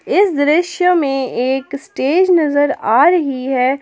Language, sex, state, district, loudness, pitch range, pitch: Hindi, female, Jharkhand, Palamu, -14 LUFS, 270-350 Hz, 285 Hz